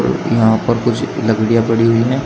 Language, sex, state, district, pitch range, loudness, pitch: Hindi, male, Uttar Pradesh, Shamli, 110-120 Hz, -14 LUFS, 115 Hz